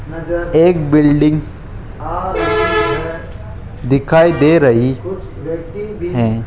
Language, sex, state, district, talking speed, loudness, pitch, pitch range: Hindi, male, Rajasthan, Jaipur, 55 wpm, -14 LUFS, 130 Hz, 100-160 Hz